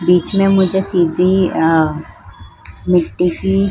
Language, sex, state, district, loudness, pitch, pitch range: Hindi, female, Uttar Pradesh, Muzaffarnagar, -14 LUFS, 180 Hz, 160-190 Hz